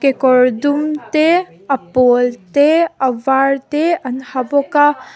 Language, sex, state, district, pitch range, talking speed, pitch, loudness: Mizo, female, Mizoram, Aizawl, 255-300 Hz, 150 wpm, 275 Hz, -15 LUFS